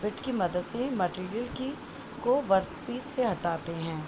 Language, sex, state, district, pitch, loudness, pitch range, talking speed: Hindi, female, Jharkhand, Jamtara, 220 Hz, -31 LUFS, 180-255 Hz, 175 wpm